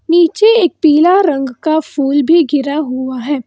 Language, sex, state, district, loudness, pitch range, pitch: Hindi, female, Karnataka, Bangalore, -12 LUFS, 275-340 Hz, 305 Hz